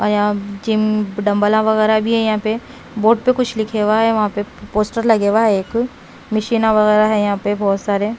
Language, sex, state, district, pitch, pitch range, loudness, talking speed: Hindi, female, Haryana, Rohtak, 215 Hz, 205-220 Hz, -16 LUFS, 210 wpm